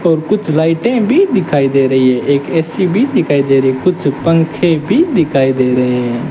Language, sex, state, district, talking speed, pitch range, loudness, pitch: Hindi, male, Rajasthan, Bikaner, 200 wpm, 135-180 Hz, -12 LUFS, 155 Hz